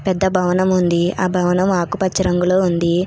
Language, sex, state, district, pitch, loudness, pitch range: Telugu, female, Telangana, Hyderabad, 180 Hz, -17 LUFS, 175-190 Hz